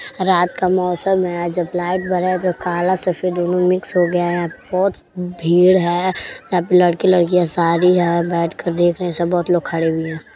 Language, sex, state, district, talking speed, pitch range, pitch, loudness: Bhojpuri, female, Uttar Pradesh, Deoria, 210 wpm, 175-185 Hz, 180 Hz, -17 LUFS